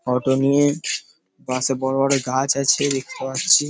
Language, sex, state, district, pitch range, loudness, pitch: Bengali, male, West Bengal, Paschim Medinipur, 130-140 Hz, -20 LUFS, 135 Hz